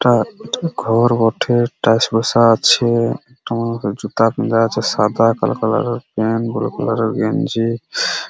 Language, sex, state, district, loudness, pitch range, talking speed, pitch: Bengali, male, West Bengal, Purulia, -17 LUFS, 115-120 Hz, 165 wpm, 115 Hz